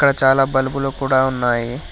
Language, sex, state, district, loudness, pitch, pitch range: Telugu, male, Telangana, Hyderabad, -17 LUFS, 135 Hz, 130-135 Hz